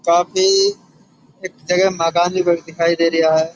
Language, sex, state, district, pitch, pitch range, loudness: Hindi, male, Uttar Pradesh, Budaun, 170 Hz, 165-185 Hz, -16 LUFS